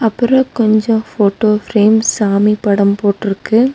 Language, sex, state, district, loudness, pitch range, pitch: Tamil, female, Tamil Nadu, Nilgiris, -13 LUFS, 205-225 Hz, 215 Hz